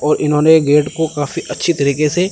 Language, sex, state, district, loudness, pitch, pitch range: Hindi, male, Chandigarh, Chandigarh, -14 LUFS, 150 Hz, 150-160 Hz